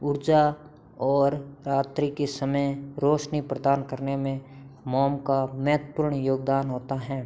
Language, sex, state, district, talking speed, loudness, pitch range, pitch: Hindi, male, Uttar Pradesh, Hamirpur, 125 wpm, -26 LUFS, 135-145 Hz, 140 Hz